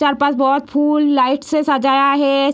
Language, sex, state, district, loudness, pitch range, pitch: Hindi, female, Bihar, Madhepura, -15 LUFS, 275-290 Hz, 280 Hz